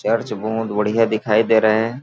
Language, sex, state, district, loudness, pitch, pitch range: Hindi, male, Chhattisgarh, Balrampur, -18 LUFS, 110 Hz, 110-115 Hz